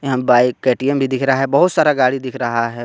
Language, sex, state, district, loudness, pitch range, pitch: Hindi, male, Jharkhand, Garhwa, -16 LUFS, 125-135 Hz, 130 Hz